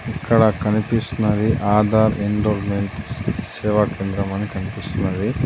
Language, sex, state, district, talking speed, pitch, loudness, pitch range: Telugu, male, Telangana, Adilabad, 90 wpm, 105 Hz, -20 LUFS, 100-110 Hz